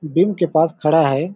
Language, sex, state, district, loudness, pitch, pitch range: Hindi, male, Chhattisgarh, Balrampur, -17 LUFS, 160 Hz, 155-170 Hz